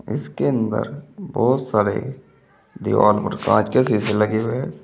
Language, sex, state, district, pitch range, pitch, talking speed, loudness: Hindi, male, Uttar Pradesh, Saharanpur, 105-130 Hz, 110 Hz, 150 wpm, -20 LUFS